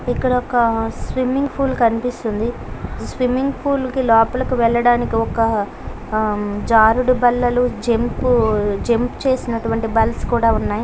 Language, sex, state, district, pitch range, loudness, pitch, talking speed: Telugu, female, Karnataka, Bellary, 225-250 Hz, -18 LUFS, 235 Hz, 100 wpm